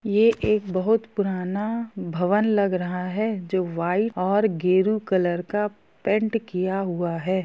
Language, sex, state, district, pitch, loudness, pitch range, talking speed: Hindi, female, Jharkhand, Sahebganj, 195 Hz, -24 LUFS, 180-215 Hz, 135 wpm